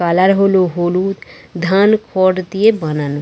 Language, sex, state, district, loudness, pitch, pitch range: Bengali, female, West Bengal, Dakshin Dinajpur, -14 LUFS, 185 Hz, 175-195 Hz